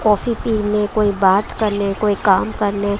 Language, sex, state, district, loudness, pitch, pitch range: Hindi, male, Maharashtra, Mumbai Suburban, -17 LUFS, 210 Hz, 200-215 Hz